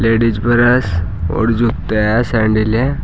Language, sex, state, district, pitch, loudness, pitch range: Hindi, male, Uttar Pradesh, Saharanpur, 115 Hz, -15 LUFS, 105-120 Hz